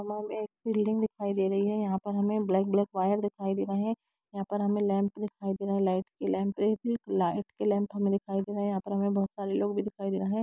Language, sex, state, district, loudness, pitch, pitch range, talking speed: Hindi, female, Bihar, Gopalganj, -30 LUFS, 200 Hz, 195-210 Hz, 260 wpm